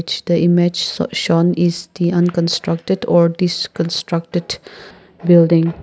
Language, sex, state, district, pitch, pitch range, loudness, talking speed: English, female, Nagaland, Kohima, 170 Hz, 165-175 Hz, -16 LUFS, 80 wpm